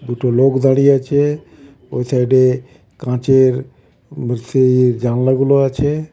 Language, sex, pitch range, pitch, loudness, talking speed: Bengali, male, 125-140 Hz, 130 Hz, -15 LUFS, 90 wpm